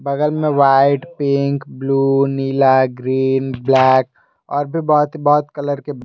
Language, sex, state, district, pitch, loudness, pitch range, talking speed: Hindi, male, Jharkhand, Garhwa, 140 Hz, -16 LUFS, 135-145 Hz, 120 wpm